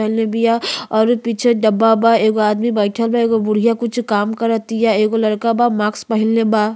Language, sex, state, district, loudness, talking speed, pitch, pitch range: Bhojpuri, female, Uttar Pradesh, Ghazipur, -16 LUFS, 195 wpm, 225 Hz, 215-230 Hz